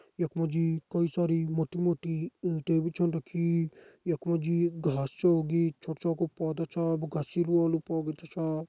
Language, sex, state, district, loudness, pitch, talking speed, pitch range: Garhwali, male, Uttarakhand, Uttarkashi, -30 LUFS, 165 Hz, 160 wpm, 160-170 Hz